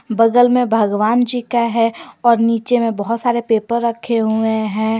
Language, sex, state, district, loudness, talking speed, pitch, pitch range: Hindi, female, Jharkhand, Garhwa, -16 LUFS, 180 wpm, 230 Hz, 220-240 Hz